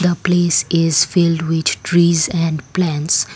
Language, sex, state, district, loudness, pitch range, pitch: English, female, Assam, Kamrup Metropolitan, -16 LUFS, 160-175 Hz, 165 Hz